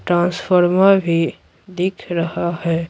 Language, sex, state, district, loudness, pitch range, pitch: Hindi, female, Bihar, Patna, -17 LUFS, 170-185 Hz, 175 Hz